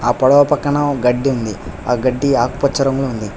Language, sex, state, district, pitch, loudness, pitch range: Telugu, male, Telangana, Hyderabad, 130 Hz, -16 LUFS, 120-140 Hz